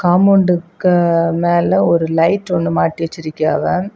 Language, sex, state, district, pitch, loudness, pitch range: Tamil, female, Tamil Nadu, Kanyakumari, 170 Hz, -15 LUFS, 165-180 Hz